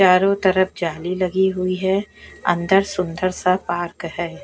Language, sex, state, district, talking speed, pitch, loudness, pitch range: Hindi, female, Bihar, West Champaran, 150 wpm, 185 Hz, -20 LUFS, 175-190 Hz